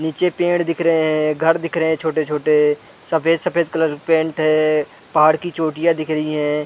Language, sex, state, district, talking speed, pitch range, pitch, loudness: Hindi, male, Chhattisgarh, Rajnandgaon, 180 wpm, 155-165 Hz, 160 Hz, -18 LUFS